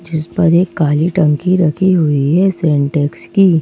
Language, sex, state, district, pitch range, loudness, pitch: Hindi, female, Madhya Pradesh, Bhopal, 150-180 Hz, -13 LUFS, 165 Hz